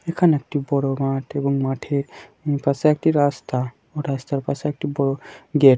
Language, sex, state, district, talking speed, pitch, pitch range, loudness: Bengali, male, West Bengal, Malda, 155 wpm, 140 Hz, 135-150 Hz, -22 LUFS